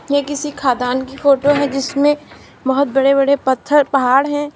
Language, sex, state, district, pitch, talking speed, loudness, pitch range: Hindi, female, Uttar Pradesh, Lalitpur, 280 Hz, 170 wpm, -16 LUFS, 270-290 Hz